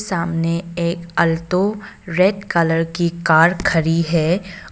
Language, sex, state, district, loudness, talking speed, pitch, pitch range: Hindi, female, Arunachal Pradesh, Papum Pare, -18 LUFS, 115 wpm, 170 Hz, 165-180 Hz